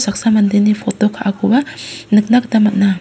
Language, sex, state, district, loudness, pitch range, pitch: Garo, female, Meghalaya, West Garo Hills, -14 LUFS, 205-225 Hz, 210 Hz